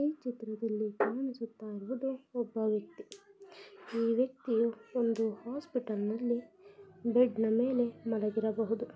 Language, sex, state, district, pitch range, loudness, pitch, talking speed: Kannada, female, Karnataka, Dakshina Kannada, 220-265 Hz, -34 LUFS, 235 Hz, 85 wpm